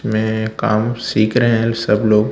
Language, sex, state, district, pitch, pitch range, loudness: Hindi, male, Chhattisgarh, Raipur, 110 Hz, 110-115 Hz, -16 LUFS